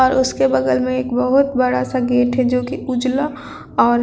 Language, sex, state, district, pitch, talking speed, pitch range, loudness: Hindi, female, Bihar, Vaishali, 250 Hz, 225 wpm, 160-260 Hz, -17 LUFS